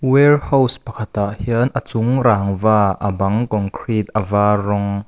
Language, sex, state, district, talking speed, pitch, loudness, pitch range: Mizo, male, Mizoram, Aizawl, 165 wpm, 110 Hz, -17 LUFS, 100-120 Hz